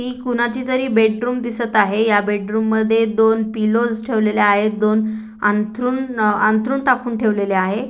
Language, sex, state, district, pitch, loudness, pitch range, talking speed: Marathi, female, Maharashtra, Aurangabad, 220 Hz, -17 LUFS, 215-240 Hz, 145 wpm